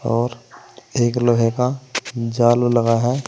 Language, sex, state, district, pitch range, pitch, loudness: Hindi, male, Uttar Pradesh, Saharanpur, 115-125 Hz, 120 Hz, -19 LUFS